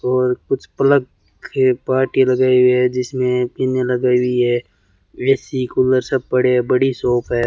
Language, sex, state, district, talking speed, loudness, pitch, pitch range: Hindi, male, Rajasthan, Bikaner, 175 wpm, -17 LUFS, 125 Hz, 125-130 Hz